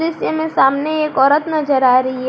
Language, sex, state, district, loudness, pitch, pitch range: Hindi, female, Jharkhand, Garhwa, -15 LUFS, 285 Hz, 265-310 Hz